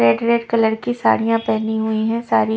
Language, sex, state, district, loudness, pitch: Hindi, female, Punjab, Pathankot, -18 LUFS, 220 Hz